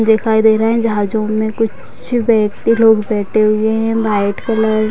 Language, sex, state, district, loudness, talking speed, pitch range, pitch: Hindi, female, Bihar, Vaishali, -14 LUFS, 185 wpm, 215-225 Hz, 220 Hz